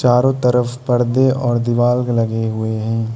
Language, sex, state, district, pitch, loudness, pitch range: Hindi, male, Arunachal Pradesh, Lower Dibang Valley, 120 Hz, -17 LUFS, 115-125 Hz